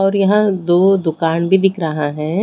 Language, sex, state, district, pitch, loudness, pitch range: Hindi, female, Odisha, Khordha, 185 Hz, -15 LUFS, 160-195 Hz